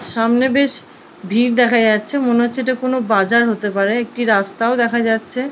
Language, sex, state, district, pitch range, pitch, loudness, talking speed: Bengali, female, West Bengal, Purulia, 220-250 Hz, 235 Hz, -16 LUFS, 185 wpm